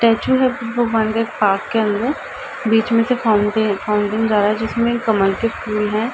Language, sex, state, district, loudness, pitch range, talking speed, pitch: Hindi, female, Uttar Pradesh, Ghazipur, -18 LUFS, 210-230 Hz, 195 wpm, 220 Hz